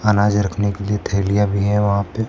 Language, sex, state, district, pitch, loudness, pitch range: Hindi, male, Maharashtra, Mumbai Suburban, 105 Hz, -18 LUFS, 100-105 Hz